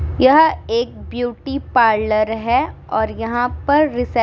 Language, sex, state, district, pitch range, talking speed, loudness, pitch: Hindi, female, Uttar Pradesh, Muzaffarnagar, 230-285 Hz, 140 wpm, -17 LUFS, 245 Hz